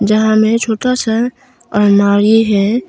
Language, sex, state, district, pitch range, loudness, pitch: Hindi, female, Arunachal Pradesh, Longding, 210-235 Hz, -12 LUFS, 220 Hz